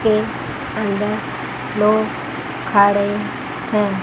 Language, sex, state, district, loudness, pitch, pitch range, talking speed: Hindi, female, Chandigarh, Chandigarh, -19 LUFS, 210 Hz, 200-215 Hz, 90 wpm